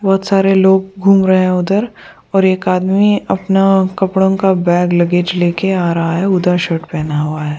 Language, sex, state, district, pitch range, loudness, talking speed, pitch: Hindi, female, Goa, North and South Goa, 175-195 Hz, -13 LUFS, 190 wpm, 190 Hz